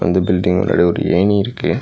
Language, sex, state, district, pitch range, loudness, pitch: Tamil, male, Tamil Nadu, Nilgiris, 85-95 Hz, -15 LUFS, 90 Hz